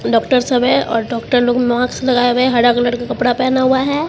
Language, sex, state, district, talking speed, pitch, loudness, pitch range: Hindi, female, Bihar, Katihar, 235 wpm, 245 Hz, -15 LUFS, 240-255 Hz